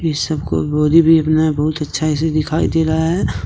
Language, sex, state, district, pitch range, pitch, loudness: Hindi, male, Jharkhand, Deoghar, 150-160 Hz, 155 Hz, -16 LUFS